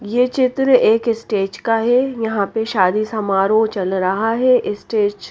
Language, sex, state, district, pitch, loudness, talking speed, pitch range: Hindi, female, Haryana, Rohtak, 220 Hz, -17 LUFS, 170 wpm, 200-240 Hz